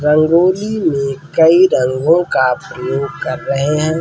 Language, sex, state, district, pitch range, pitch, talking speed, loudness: Hindi, male, Uttar Pradesh, Jalaun, 135-170 Hz, 150 Hz, 135 wpm, -14 LUFS